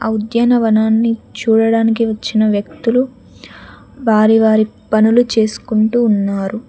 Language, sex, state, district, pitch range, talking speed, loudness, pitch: Telugu, female, Telangana, Mahabubabad, 215-230 Hz, 90 wpm, -14 LUFS, 225 Hz